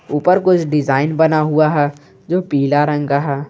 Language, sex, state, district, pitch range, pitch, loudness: Hindi, male, Jharkhand, Garhwa, 145-160 Hz, 150 Hz, -15 LUFS